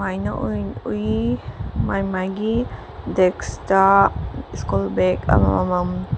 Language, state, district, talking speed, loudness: Manipuri, Manipur, Imphal West, 85 wpm, -21 LUFS